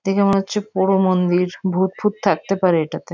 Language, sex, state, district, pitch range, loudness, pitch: Bengali, female, West Bengal, Jhargram, 180-195 Hz, -19 LUFS, 190 Hz